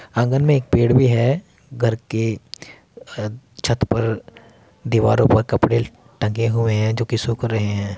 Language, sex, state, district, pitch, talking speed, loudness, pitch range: Hindi, male, Uttar Pradesh, Muzaffarnagar, 115 Hz, 160 wpm, -19 LUFS, 110-120 Hz